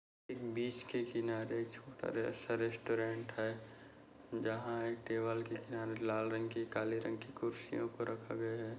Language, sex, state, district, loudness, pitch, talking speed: Hindi, male, Goa, North and South Goa, -40 LUFS, 115 Hz, 155 wpm